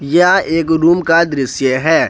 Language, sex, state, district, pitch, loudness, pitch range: Hindi, male, Jharkhand, Ranchi, 165 Hz, -13 LUFS, 140-170 Hz